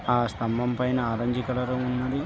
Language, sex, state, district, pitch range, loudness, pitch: Telugu, male, Andhra Pradesh, Visakhapatnam, 120-125 Hz, -27 LUFS, 125 Hz